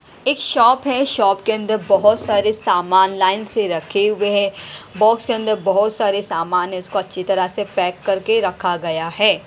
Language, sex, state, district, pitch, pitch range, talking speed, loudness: Hindi, female, Punjab, Pathankot, 200 Hz, 185-215 Hz, 190 wpm, -17 LUFS